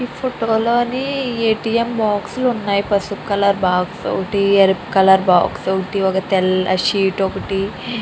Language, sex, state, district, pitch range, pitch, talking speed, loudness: Telugu, female, Andhra Pradesh, Chittoor, 190-230 Hz, 200 Hz, 165 wpm, -17 LUFS